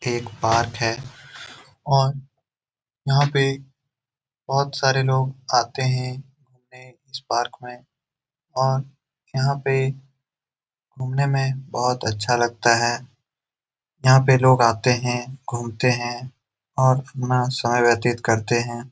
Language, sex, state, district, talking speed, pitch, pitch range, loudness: Hindi, male, Bihar, Jamui, 110 wpm, 130 Hz, 120-135 Hz, -21 LUFS